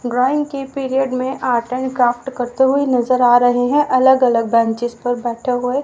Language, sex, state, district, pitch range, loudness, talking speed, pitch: Hindi, female, Haryana, Rohtak, 245-265 Hz, -16 LUFS, 195 wpm, 250 Hz